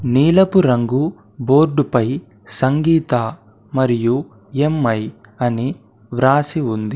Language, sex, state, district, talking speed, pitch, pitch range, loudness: Telugu, male, Telangana, Komaram Bheem, 85 wpm, 130 Hz, 115-150 Hz, -17 LUFS